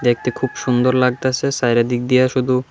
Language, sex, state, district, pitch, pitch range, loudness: Bengali, male, Tripura, West Tripura, 125 Hz, 120-130 Hz, -17 LUFS